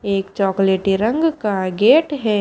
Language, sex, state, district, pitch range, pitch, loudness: Hindi, female, Haryana, Charkhi Dadri, 195-235 Hz, 205 Hz, -17 LUFS